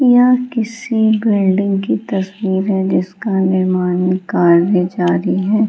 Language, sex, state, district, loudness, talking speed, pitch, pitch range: Hindi, female, Bihar, Gaya, -15 LUFS, 115 wpm, 195 Hz, 185-220 Hz